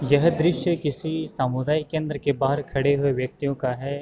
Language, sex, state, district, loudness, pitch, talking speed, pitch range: Hindi, male, Uttar Pradesh, Varanasi, -24 LUFS, 145 Hz, 180 wpm, 135-155 Hz